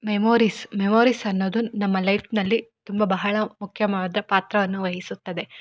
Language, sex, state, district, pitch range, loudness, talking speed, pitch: Kannada, female, Karnataka, Mysore, 195-225 Hz, -23 LUFS, 105 wpm, 210 Hz